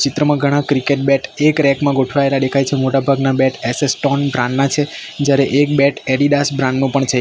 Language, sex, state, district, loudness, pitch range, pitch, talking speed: Gujarati, male, Gujarat, Valsad, -15 LUFS, 135-145 Hz, 140 Hz, 210 wpm